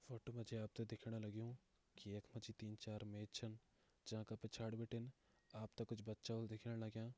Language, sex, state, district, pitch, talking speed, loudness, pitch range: Garhwali, male, Uttarakhand, Tehri Garhwal, 110 Hz, 175 wpm, -52 LUFS, 110-115 Hz